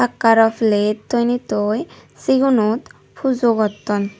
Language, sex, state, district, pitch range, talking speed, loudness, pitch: Chakma, female, Tripura, Dhalai, 210-245 Hz, 115 wpm, -18 LUFS, 225 Hz